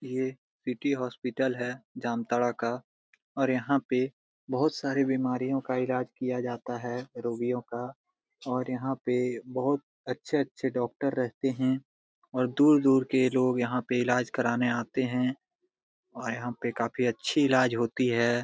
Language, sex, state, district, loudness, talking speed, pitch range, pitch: Hindi, male, Jharkhand, Jamtara, -29 LUFS, 145 wpm, 120-130 Hz, 125 Hz